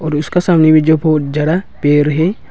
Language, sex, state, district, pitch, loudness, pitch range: Hindi, male, Arunachal Pradesh, Longding, 155 Hz, -13 LUFS, 150-165 Hz